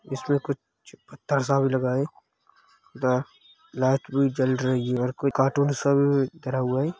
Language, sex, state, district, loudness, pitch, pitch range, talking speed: Hindi, male, Uttar Pradesh, Hamirpur, -25 LUFS, 135 Hz, 130-140 Hz, 180 wpm